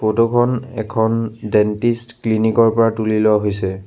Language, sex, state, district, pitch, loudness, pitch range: Assamese, male, Assam, Sonitpur, 110 Hz, -17 LUFS, 110-115 Hz